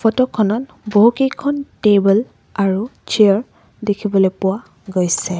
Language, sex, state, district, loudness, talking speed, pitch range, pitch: Assamese, female, Assam, Sonitpur, -17 LUFS, 100 wpm, 195-235 Hz, 210 Hz